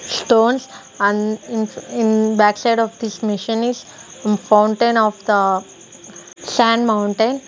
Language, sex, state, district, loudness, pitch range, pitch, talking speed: English, female, Punjab, Kapurthala, -17 LUFS, 210-230 Hz, 220 Hz, 110 wpm